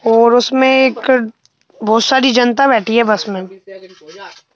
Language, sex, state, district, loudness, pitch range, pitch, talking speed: Hindi, male, Madhya Pradesh, Bhopal, -12 LUFS, 210-260 Hz, 230 Hz, 130 wpm